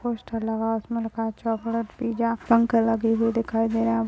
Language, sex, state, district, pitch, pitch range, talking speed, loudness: Hindi, female, Uttar Pradesh, Budaun, 225 Hz, 225-230 Hz, 235 wpm, -25 LUFS